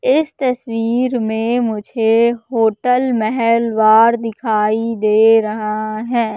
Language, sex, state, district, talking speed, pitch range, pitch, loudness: Hindi, female, Madhya Pradesh, Katni, 95 wpm, 220-240 Hz, 225 Hz, -15 LUFS